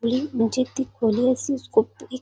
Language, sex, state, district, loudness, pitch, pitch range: Marathi, female, Maharashtra, Sindhudurg, -23 LUFS, 255 Hz, 230-265 Hz